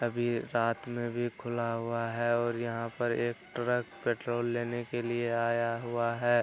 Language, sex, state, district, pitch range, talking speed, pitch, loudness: Hindi, male, Bihar, Araria, 115-120 Hz, 175 wpm, 120 Hz, -32 LUFS